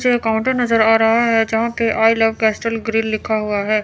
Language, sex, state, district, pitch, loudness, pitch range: Hindi, female, Chandigarh, Chandigarh, 225 Hz, -16 LUFS, 220-230 Hz